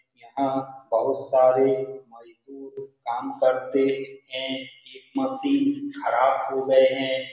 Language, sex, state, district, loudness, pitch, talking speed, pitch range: Hindi, male, Bihar, Saran, -24 LUFS, 135 Hz, 115 wpm, 130-135 Hz